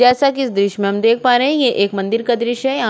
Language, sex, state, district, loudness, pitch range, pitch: Hindi, female, Chhattisgarh, Sukma, -16 LUFS, 200-260 Hz, 240 Hz